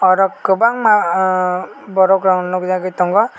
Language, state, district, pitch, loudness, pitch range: Kokborok, Tripura, West Tripura, 185 Hz, -15 LUFS, 185-195 Hz